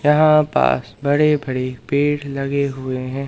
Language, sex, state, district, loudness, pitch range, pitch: Hindi, male, Madhya Pradesh, Katni, -18 LUFS, 130-145 Hz, 140 Hz